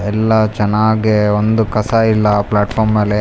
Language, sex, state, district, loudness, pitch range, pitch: Kannada, male, Karnataka, Raichur, -14 LUFS, 105-110 Hz, 105 Hz